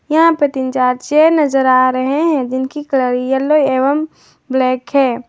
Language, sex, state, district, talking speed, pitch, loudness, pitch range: Hindi, female, Jharkhand, Ranchi, 170 wpm, 265 Hz, -14 LUFS, 255-295 Hz